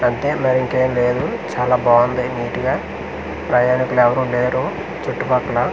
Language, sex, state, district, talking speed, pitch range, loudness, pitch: Telugu, male, Andhra Pradesh, Manyam, 115 wpm, 125-130 Hz, -18 LUFS, 125 Hz